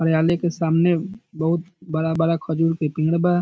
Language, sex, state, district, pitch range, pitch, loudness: Bhojpuri, male, Bihar, Saran, 160-175 Hz, 165 Hz, -21 LUFS